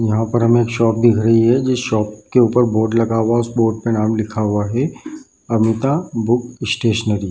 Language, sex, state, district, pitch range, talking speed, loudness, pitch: Hindi, male, Bihar, Bhagalpur, 110-120 Hz, 230 wpm, -17 LUFS, 115 Hz